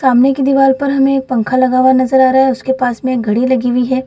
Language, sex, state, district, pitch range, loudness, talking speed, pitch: Hindi, female, Bihar, Gaya, 255-265 Hz, -12 LUFS, 310 wpm, 260 Hz